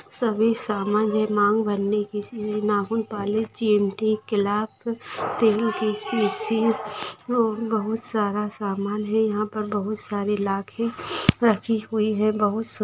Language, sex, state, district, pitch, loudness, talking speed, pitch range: Hindi, female, Bihar, Jamui, 215 Hz, -24 LUFS, 135 wpm, 210-220 Hz